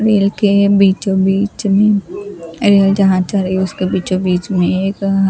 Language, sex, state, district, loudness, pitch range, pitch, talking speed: Hindi, female, Bihar, Kaimur, -14 LUFS, 185-200 Hz, 195 Hz, 170 wpm